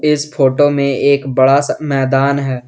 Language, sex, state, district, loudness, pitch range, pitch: Hindi, male, Jharkhand, Garhwa, -13 LUFS, 135-145 Hz, 140 Hz